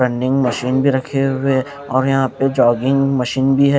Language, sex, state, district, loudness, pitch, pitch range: Hindi, male, Punjab, Kapurthala, -16 LUFS, 135 Hz, 130-135 Hz